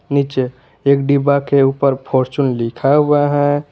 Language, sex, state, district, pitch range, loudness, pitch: Hindi, male, Jharkhand, Garhwa, 130-145 Hz, -15 LUFS, 140 Hz